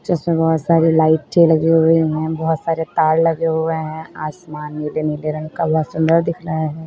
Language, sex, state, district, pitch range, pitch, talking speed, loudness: Hindi, female, Uttar Pradesh, Lalitpur, 155-165 Hz, 160 Hz, 210 wpm, -17 LUFS